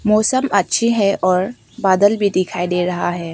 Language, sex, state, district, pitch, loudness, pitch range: Hindi, female, Arunachal Pradesh, Papum Pare, 200 Hz, -17 LUFS, 180-215 Hz